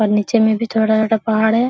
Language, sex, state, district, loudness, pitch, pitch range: Hindi, female, Bihar, Araria, -16 LUFS, 220 Hz, 220-225 Hz